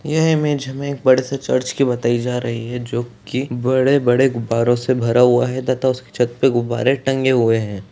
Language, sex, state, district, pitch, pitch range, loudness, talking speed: Hindi, male, Chhattisgarh, Sarguja, 125 Hz, 120-135 Hz, -18 LUFS, 195 wpm